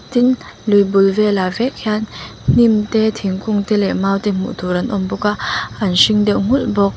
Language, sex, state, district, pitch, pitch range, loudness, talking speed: Mizo, female, Mizoram, Aizawl, 205 Hz, 195-220 Hz, -16 LUFS, 205 wpm